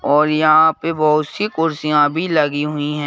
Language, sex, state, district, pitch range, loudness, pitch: Hindi, male, Madhya Pradesh, Bhopal, 150-160 Hz, -16 LUFS, 155 Hz